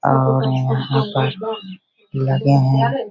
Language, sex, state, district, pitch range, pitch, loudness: Hindi, male, Bihar, Begusarai, 135-140 Hz, 135 Hz, -18 LUFS